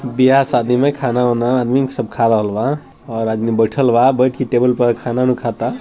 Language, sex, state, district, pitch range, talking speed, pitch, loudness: Bhojpuri, male, Bihar, Gopalganj, 115-130 Hz, 205 wpm, 125 Hz, -16 LUFS